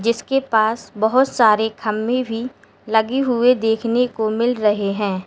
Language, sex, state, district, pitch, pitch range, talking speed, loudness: Hindi, female, Uttar Pradesh, Lalitpur, 225 Hz, 220-245 Hz, 150 wpm, -18 LUFS